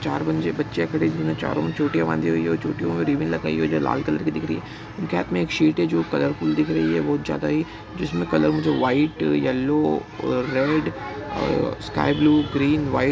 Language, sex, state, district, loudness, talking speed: Hindi, male, Bihar, Bhagalpur, -22 LUFS, 245 wpm